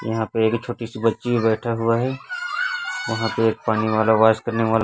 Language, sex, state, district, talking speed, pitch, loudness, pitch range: Hindi, male, Chhattisgarh, Raipur, 210 wpm, 115 Hz, -21 LUFS, 110-120 Hz